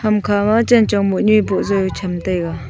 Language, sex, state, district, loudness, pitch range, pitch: Wancho, female, Arunachal Pradesh, Longding, -16 LUFS, 190-215 Hz, 205 Hz